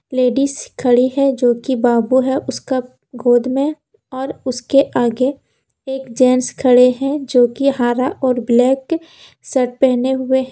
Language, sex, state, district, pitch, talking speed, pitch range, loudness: Hindi, female, Jharkhand, Deoghar, 260 Hz, 135 wpm, 250-275 Hz, -16 LUFS